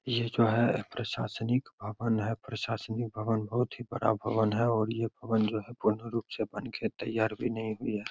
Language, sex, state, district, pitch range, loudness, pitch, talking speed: Hindi, male, Bihar, Begusarai, 110-120 Hz, -31 LUFS, 115 Hz, 200 wpm